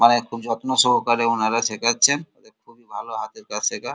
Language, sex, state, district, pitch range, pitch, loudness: Bengali, male, West Bengal, Kolkata, 115-130 Hz, 120 Hz, -20 LUFS